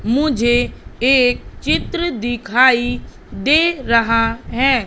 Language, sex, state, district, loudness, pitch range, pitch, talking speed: Hindi, female, Madhya Pradesh, Katni, -16 LUFS, 235-270 Hz, 245 Hz, 85 wpm